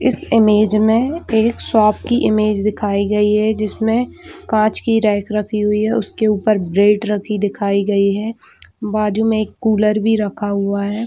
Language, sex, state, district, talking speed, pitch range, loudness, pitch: Hindi, female, Chhattisgarh, Raigarh, 180 wpm, 205-220 Hz, -16 LUFS, 215 Hz